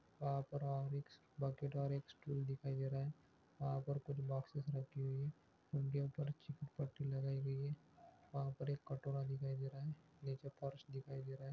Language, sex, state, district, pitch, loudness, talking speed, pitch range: Hindi, male, Jharkhand, Jamtara, 140 Hz, -45 LUFS, 200 wpm, 135-145 Hz